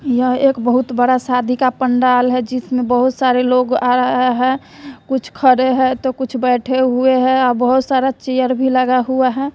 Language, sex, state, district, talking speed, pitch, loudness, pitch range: Hindi, female, Bihar, West Champaran, 190 wpm, 255 Hz, -15 LUFS, 250-260 Hz